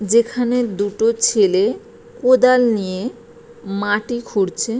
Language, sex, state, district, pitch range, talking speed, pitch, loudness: Bengali, female, West Bengal, Purulia, 205-245 Hz, 85 wpm, 235 Hz, -17 LUFS